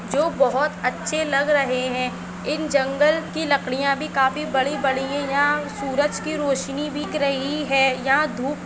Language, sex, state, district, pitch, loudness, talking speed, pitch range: Hindi, female, Maharashtra, Nagpur, 280 Hz, -22 LUFS, 180 wpm, 270-295 Hz